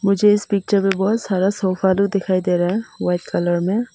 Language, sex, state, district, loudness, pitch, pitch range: Hindi, female, Arunachal Pradesh, Papum Pare, -19 LUFS, 195 Hz, 185-205 Hz